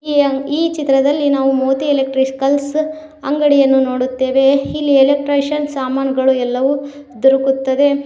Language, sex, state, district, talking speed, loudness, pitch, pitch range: Kannada, female, Karnataka, Koppal, 105 wpm, -15 LUFS, 275 Hz, 265-285 Hz